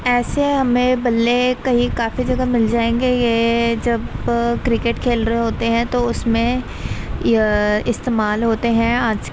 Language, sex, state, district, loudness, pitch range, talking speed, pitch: Hindi, female, Uttar Pradesh, Budaun, -18 LUFS, 230-245 Hz, 140 wpm, 235 Hz